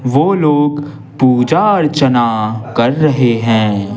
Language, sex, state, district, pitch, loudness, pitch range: Hindi, male, Bihar, Patna, 130 Hz, -12 LUFS, 115-145 Hz